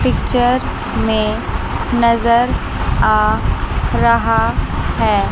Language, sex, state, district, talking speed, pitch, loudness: Hindi, female, Chandigarh, Chandigarh, 70 wpm, 215 Hz, -16 LUFS